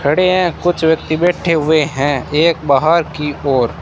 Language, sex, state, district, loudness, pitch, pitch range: Hindi, male, Rajasthan, Bikaner, -14 LUFS, 155 Hz, 145-170 Hz